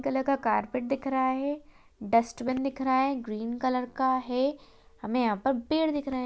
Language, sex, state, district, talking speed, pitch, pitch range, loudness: Hindi, female, Chhattisgarh, Balrampur, 190 wpm, 260 Hz, 250-275 Hz, -28 LUFS